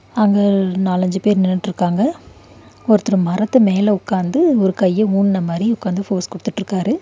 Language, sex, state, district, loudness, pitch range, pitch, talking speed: Tamil, female, Tamil Nadu, Nilgiris, -17 LUFS, 185-215 Hz, 200 Hz, 135 wpm